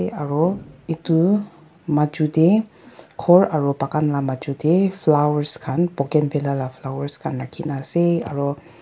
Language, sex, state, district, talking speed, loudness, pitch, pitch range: Nagamese, female, Nagaland, Dimapur, 130 wpm, -20 LUFS, 150 Hz, 140-170 Hz